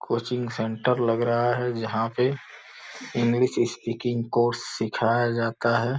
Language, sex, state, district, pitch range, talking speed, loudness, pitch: Hindi, male, Uttar Pradesh, Gorakhpur, 115-120 Hz, 130 wpm, -25 LUFS, 120 Hz